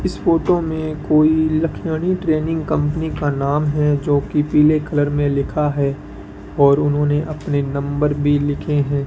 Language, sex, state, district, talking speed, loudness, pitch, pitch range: Hindi, male, Rajasthan, Bikaner, 160 wpm, -18 LUFS, 150 Hz, 145-155 Hz